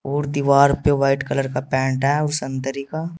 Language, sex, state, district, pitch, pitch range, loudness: Hindi, male, Uttar Pradesh, Saharanpur, 140 Hz, 135-145 Hz, -20 LUFS